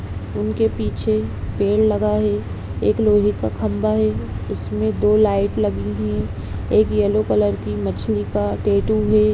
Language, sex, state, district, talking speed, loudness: Hindi, female, Bihar, Darbhanga, 150 wpm, -20 LUFS